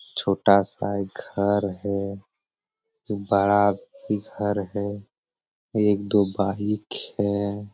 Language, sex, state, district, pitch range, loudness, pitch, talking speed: Hindi, male, Jharkhand, Sahebganj, 100-105 Hz, -24 LUFS, 100 Hz, 95 wpm